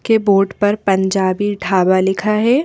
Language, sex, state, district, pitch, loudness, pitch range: Hindi, female, Madhya Pradesh, Bhopal, 200 Hz, -15 LUFS, 190-210 Hz